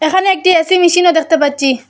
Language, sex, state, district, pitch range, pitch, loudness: Bengali, female, Assam, Hailakandi, 295-365 Hz, 335 Hz, -11 LUFS